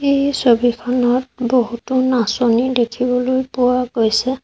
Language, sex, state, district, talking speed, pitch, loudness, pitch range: Assamese, female, Assam, Sonitpur, 95 wpm, 250 Hz, -17 LUFS, 240-255 Hz